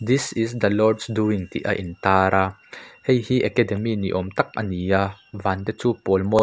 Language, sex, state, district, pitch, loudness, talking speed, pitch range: Mizo, male, Mizoram, Aizawl, 100 Hz, -22 LUFS, 225 wpm, 95-115 Hz